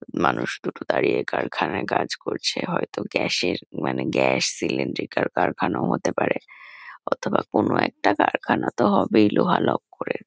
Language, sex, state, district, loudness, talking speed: Bengali, female, West Bengal, Kolkata, -23 LUFS, 135 wpm